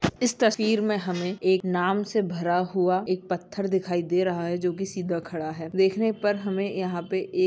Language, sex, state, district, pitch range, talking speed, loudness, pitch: Hindi, female, Jharkhand, Jamtara, 180-205 Hz, 215 wpm, -26 LUFS, 185 Hz